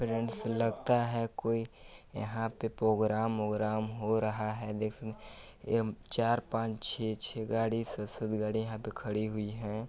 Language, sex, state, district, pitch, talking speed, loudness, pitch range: Hindi, male, Chhattisgarh, Balrampur, 110 Hz, 150 wpm, -34 LUFS, 110-115 Hz